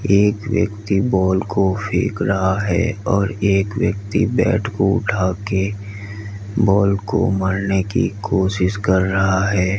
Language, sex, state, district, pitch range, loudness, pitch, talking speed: Hindi, male, Uttar Pradesh, Lalitpur, 95-105 Hz, -18 LUFS, 100 Hz, 135 wpm